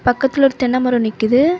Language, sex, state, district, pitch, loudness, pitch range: Tamil, female, Tamil Nadu, Kanyakumari, 255 Hz, -16 LUFS, 245-270 Hz